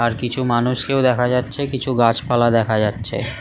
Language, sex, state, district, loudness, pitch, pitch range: Bengali, male, West Bengal, Kolkata, -18 LUFS, 120 Hz, 115-130 Hz